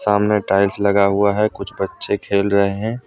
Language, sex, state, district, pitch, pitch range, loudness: Hindi, male, Jharkhand, Deoghar, 100 Hz, 100-105 Hz, -18 LUFS